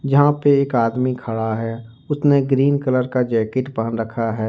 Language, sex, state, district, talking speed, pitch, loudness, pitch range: Hindi, male, Jharkhand, Ranchi, 185 wpm, 125 Hz, -19 LUFS, 115-140 Hz